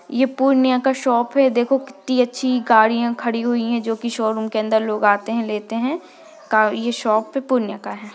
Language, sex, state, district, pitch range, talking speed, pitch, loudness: Hindi, female, Bihar, Purnia, 220-260 Hz, 205 wpm, 235 Hz, -19 LUFS